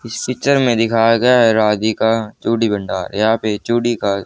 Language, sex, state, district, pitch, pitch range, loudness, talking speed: Hindi, male, Haryana, Charkhi Dadri, 115 Hz, 105-120 Hz, -16 LUFS, 170 wpm